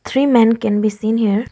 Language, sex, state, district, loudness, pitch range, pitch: English, female, Arunachal Pradesh, Lower Dibang Valley, -15 LUFS, 215-230 Hz, 220 Hz